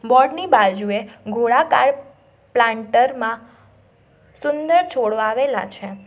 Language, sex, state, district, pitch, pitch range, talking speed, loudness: Gujarati, female, Gujarat, Valsad, 240 Hz, 220-275 Hz, 100 wpm, -18 LUFS